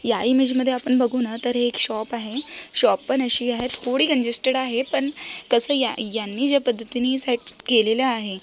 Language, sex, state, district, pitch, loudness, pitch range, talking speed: Marathi, female, Maharashtra, Solapur, 250 Hz, -21 LUFS, 235-265 Hz, 185 wpm